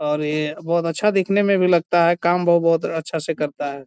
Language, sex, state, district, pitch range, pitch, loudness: Hindi, male, Bihar, Jamui, 150-175 Hz, 165 Hz, -19 LUFS